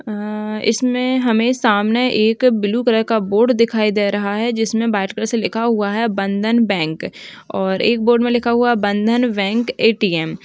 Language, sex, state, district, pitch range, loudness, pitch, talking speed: Hindi, female, Uttar Pradesh, Hamirpur, 210-235 Hz, -17 LUFS, 225 Hz, 190 wpm